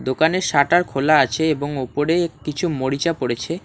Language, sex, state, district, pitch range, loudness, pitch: Bengali, male, West Bengal, Alipurduar, 135-165 Hz, -19 LUFS, 155 Hz